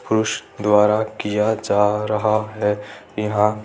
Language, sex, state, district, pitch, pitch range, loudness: Hindi, male, Rajasthan, Churu, 105 Hz, 105-110 Hz, -20 LUFS